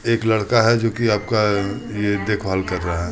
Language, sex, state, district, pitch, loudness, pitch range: Hindi, male, Bihar, Patna, 105 Hz, -20 LUFS, 100-115 Hz